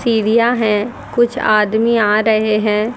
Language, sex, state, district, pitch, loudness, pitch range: Hindi, female, Haryana, Rohtak, 220 Hz, -14 LUFS, 215-235 Hz